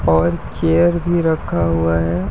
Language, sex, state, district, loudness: Hindi, male, Uttar Pradesh, Etah, -17 LUFS